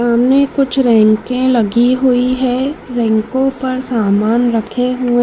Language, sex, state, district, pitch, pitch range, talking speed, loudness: Hindi, female, Madhya Pradesh, Dhar, 250 Hz, 235-260 Hz, 125 wpm, -14 LUFS